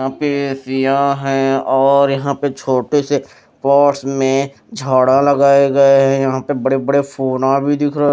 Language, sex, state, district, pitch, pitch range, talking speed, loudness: Hindi, male, Odisha, Malkangiri, 135 Hz, 135-140 Hz, 170 wpm, -15 LUFS